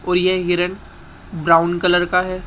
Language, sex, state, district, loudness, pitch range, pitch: Hindi, male, Rajasthan, Jaipur, -17 LUFS, 175-185 Hz, 180 Hz